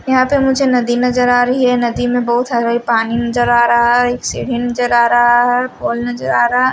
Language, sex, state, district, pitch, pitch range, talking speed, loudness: Hindi, female, Haryana, Rohtak, 245 Hz, 240-250 Hz, 240 wpm, -14 LUFS